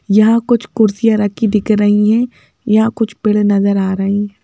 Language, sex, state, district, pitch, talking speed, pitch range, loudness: Hindi, female, Madhya Pradesh, Bhopal, 210 Hz, 190 wpm, 205-225 Hz, -14 LUFS